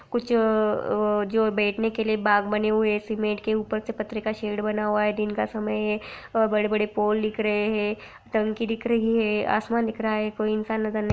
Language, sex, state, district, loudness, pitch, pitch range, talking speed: Hindi, female, Bihar, Sitamarhi, -25 LUFS, 215 Hz, 210-220 Hz, 225 wpm